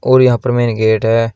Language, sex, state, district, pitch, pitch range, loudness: Hindi, male, Uttar Pradesh, Shamli, 115 Hz, 110-125 Hz, -13 LUFS